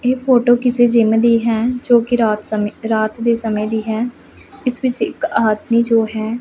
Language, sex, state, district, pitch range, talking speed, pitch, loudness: Punjabi, female, Punjab, Pathankot, 220-245 Hz, 195 wpm, 230 Hz, -16 LUFS